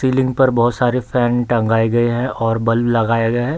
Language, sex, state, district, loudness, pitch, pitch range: Hindi, male, Bihar, Darbhanga, -16 LUFS, 120 Hz, 115-125 Hz